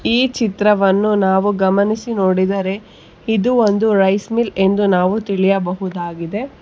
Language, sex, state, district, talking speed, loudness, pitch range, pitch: Kannada, female, Karnataka, Bangalore, 110 wpm, -16 LUFS, 190-215 Hz, 200 Hz